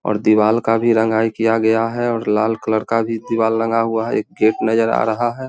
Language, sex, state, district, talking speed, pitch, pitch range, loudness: Hindi, male, Bihar, Vaishali, 250 wpm, 115 Hz, 110-115 Hz, -17 LUFS